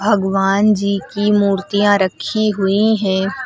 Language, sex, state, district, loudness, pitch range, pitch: Hindi, female, Uttar Pradesh, Lucknow, -16 LUFS, 195-210 Hz, 200 Hz